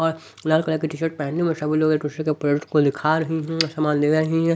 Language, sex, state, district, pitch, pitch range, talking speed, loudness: Hindi, male, Haryana, Rohtak, 155 Hz, 150-160 Hz, 265 wpm, -22 LUFS